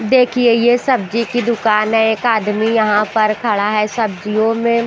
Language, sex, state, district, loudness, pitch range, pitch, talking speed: Hindi, female, Bihar, Patna, -15 LUFS, 215-235 Hz, 225 Hz, 175 wpm